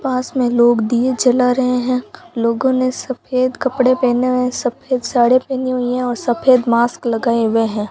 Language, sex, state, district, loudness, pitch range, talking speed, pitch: Hindi, female, Rajasthan, Bikaner, -16 LUFS, 240-255 Hz, 180 wpm, 250 Hz